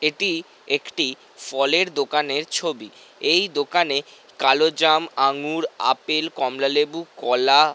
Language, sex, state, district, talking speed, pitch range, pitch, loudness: Bengali, male, West Bengal, North 24 Parganas, 100 wpm, 140-170 Hz, 155 Hz, -21 LUFS